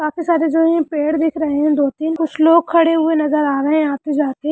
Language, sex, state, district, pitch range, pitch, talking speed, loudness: Hindi, female, Bihar, Lakhisarai, 295-325 Hz, 310 Hz, 240 wpm, -16 LUFS